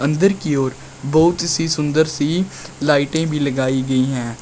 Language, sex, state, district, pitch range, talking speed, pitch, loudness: Hindi, male, Uttar Pradesh, Shamli, 135-160 Hz, 165 wpm, 150 Hz, -18 LUFS